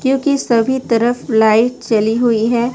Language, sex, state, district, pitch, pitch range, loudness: Hindi, female, Chhattisgarh, Raipur, 240 Hz, 225-260 Hz, -14 LUFS